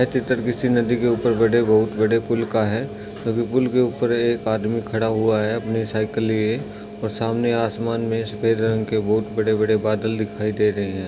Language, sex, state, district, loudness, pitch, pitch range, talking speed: Hindi, male, Bihar, Jahanabad, -21 LUFS, 110 Hz, 110-115 Hz, 210 wpm